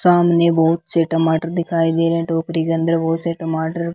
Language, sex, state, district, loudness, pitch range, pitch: Hindi, male, Rajasthan, Bikaner, -18 LUFS, 165-170 Hz, 165 Hz